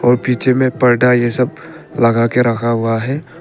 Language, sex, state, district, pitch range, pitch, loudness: Hindi, male, Arunachal Pradesh, Papum Pare, 120-130 Hz, 125 Hz, -14 LUFS